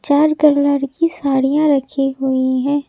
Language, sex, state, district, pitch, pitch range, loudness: Hindi, male, Madhya Pradesh, Bhopal, 285 Hz, 270-295 Hz, -16 LUFS